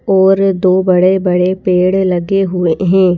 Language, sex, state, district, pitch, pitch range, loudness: Hindi, female, Madhya Pradesh, Bhopal, 185 Hz, 180-190 Hz, -12 LUFS